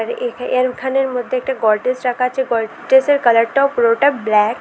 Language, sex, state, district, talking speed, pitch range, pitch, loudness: Bengali, female, Tripura, West Tripura, 145 wpm, 230-265 Hz, 255 Hz, -16 LUFS